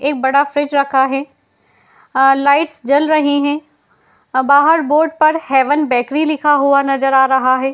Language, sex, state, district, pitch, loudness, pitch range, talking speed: Hindi, female, Uttar Pradesh, Jalaun, 280 Hz, -14 LUFS, 270-300 Hz, 155 wpm